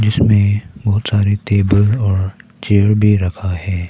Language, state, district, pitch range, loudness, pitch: Hindi, Arunachal Pradesh, Papum Pare, 95-105 Hz, -15 LUFS, 100 Hz